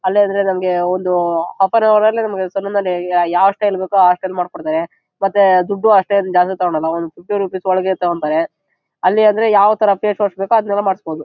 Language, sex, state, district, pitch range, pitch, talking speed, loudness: Kannada, male, Karnataka, Shimoga, 180-205 Hz, 195 Hz, 160 wpm, -15 LUFS